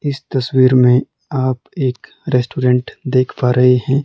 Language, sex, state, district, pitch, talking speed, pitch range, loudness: Hindi, male, Himachal Pradesh, Shimla, 130 Hz, 150 wpm, 125-135 Hz, -15 LUFS